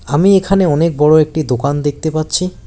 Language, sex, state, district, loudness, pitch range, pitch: Bengali, male, West Bengal, Alipurduar, -13 LUFS, 145-180 Hz, 155 Hz